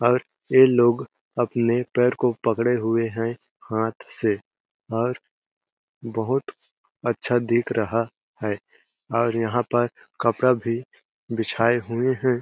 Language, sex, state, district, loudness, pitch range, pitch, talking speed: Hindi, male, Chhattisgarh, Balrampur, -23 LUFS, 115-125 Hz, 120 Hz, 120 wpm